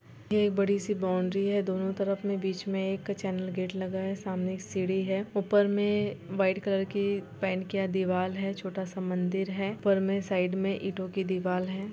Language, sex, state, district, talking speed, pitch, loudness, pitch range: Hindi, female, Uttar Pradesh, Jalaun, 205 wpm, 195 Hz, -30 LUFS, 185-200 Hz